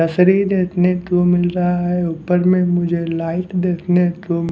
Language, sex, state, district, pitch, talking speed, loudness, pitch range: Hindi, male, Haryana, Jhajjar, 180 Hz, 160 wpm, -17 LUFS, 170-180 Hz